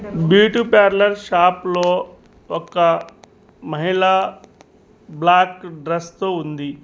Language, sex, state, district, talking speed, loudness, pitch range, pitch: Telugu, male, Telangana, Mahabubabad, 90 wpm, -17 LUFS, 170-200 Hz, 180 Hz